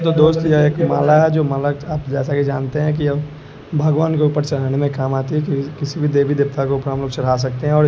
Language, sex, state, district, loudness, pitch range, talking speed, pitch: Hindi, male, Bihar, West Champaran, -18 LUFS, 140-150 Hz, 265 wpm, 145 Hz